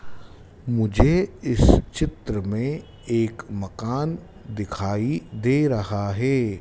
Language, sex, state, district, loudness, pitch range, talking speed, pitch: Hindi, male, Madhya Pradesh, Dhar, -23 LUFS, 100-130 Hz, 90 wpm, 110 Hz